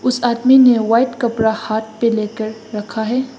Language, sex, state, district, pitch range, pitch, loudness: Hindi, female, Assam, Hailakandi, 220-245 Hz, 230 Hz, -16 LUFS